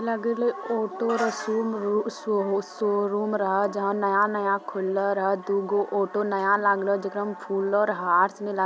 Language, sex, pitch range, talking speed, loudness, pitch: Magahi, female, 195-210 Hz, 145 wpm, -25 LUFS, 205 Hz